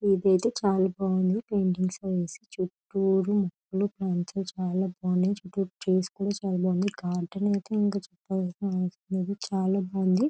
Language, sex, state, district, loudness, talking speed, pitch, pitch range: Telugu, female, Andhra Pradesh, Chittoor, -28 LUFS, 95 wpm, 190 Hz, 185-200 Hz